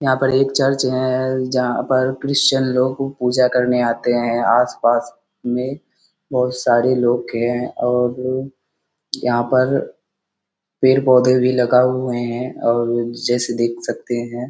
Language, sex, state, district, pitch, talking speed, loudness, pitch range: Hindi, male, Bihar, Kishanganj, 125 Hz, 130 wpm, -18 LUFS, 120-130 Hz